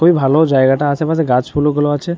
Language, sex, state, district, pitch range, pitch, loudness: Bengali, male, West Bengal, Jhargram, 135-160 Hz, 145 Hz, -14 LUFS